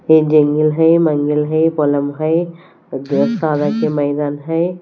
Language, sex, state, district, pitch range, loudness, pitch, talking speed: Hindi, female, Punjab, Kapurthala, 145-165 Hz, -15 LUFS, 155 Hz, 85 wpm